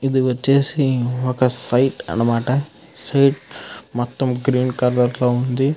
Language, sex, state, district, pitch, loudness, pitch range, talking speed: Telugu, male, Andhra Pradesh, Krishna, 125 Hz, -19 LUFS, 120-135 Hz, 115 wpm